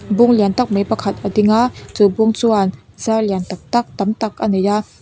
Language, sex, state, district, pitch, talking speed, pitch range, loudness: Mizo, female, Mizoram, Aizawl, 210 Hz, 240 wpm, 200-220 Hz, -16 LUFS